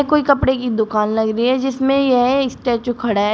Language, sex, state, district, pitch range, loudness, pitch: Hindi, female, Uttar Pradesh, Shamli, 220-265 Hz, -17 LUFS, 245 Hz